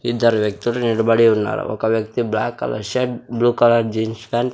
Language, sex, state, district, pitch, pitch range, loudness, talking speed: Telugu, male, Andhra Pradesh, Sri Satya Sai, 115 Hz, 110-120 Hz, -19 LUFS, 185 wpm